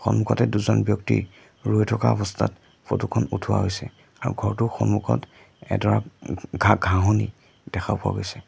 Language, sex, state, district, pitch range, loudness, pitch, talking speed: Assamese, male, Assam, Sonitpur, 100-120 Hz, -24 LUFS, 105 Hz, 140 wpm